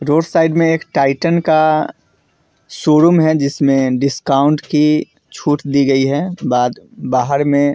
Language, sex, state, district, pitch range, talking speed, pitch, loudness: Hindi, male, Bihar, Vaishali, 140-160 Hz, 145 wpm, 145 Hz, -14 LUFS